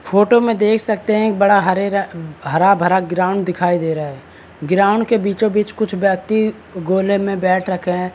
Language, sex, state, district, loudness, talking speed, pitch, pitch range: Hindi, male, Maharashtra, Chandrapur, -16 LUFS, 200 wpm, 195 Hz, 180-210 Hz